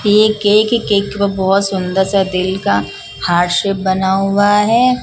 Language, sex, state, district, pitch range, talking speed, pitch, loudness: Hindi, female, Maharashtra, Mumbai Suburban, 190-205 Hz, 145 wpm, 195 Hz, -14 LUFS